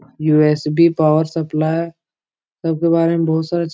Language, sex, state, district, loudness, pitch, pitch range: Hindi, male, Bihar, Supaul, -16 LUFS, 160 Hz, 155-165 Hz